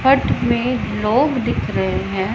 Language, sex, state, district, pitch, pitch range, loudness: Hindi, female, Punjab, Pathankot, 235 Hz, 165-260 Hz, -18 LUFS